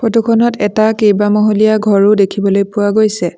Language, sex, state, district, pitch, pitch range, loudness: Assamese, female, Assam, Sonitpur, 210 Hz, 205-220 Hz, -12 LUFS